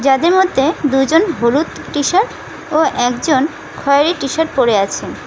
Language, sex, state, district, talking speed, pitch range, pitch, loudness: Bengali, female, West Bengal, Cooch Behar, 125 wpm, 265-325 Hz, 285 Hz, -15 LUFS